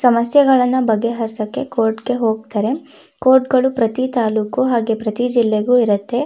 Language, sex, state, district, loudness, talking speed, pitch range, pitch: Kannada, female, Karnataka, Shimoga, -17 LUFS, 135 wpm, 220-255 Hz, 240 Hz